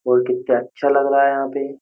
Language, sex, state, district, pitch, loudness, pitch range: Hindi, male, Uttar Pradesh, Jyotiba Phule Nagar, 135 Hz, -18 LUFS, 125-140 Hz